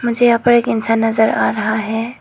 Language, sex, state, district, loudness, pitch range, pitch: Hindi, female, Arunachal Pradesh, Lower Dibang Valley, -15 LUFS, 220-235 Hz, 225 Hz